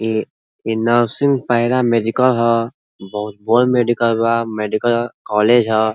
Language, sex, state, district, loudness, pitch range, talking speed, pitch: Bhojpuri, male, Uttar Pradesh, Ghazipur, -16 LUFS, 110-120 Hz, 130 wpm, 115 Hz